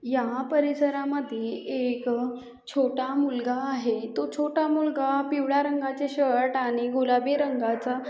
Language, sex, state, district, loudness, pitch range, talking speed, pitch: Marathi, female, Maharashtra, Aurangabad, -26 LUFS, 245-285 Hz, 120 wpm, 260 Hz